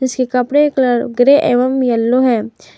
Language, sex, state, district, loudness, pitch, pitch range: Hindi, female, Jharkhand, Garhwa, -13 LUFS, 250 Hz, 240-260 Hz